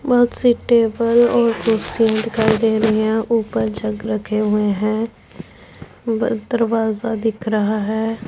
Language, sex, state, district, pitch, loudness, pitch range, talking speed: Hindi, female, Punjab, Pathankot, 225 Hz, -18 LUFS, 215-230 Hz, 145 wpm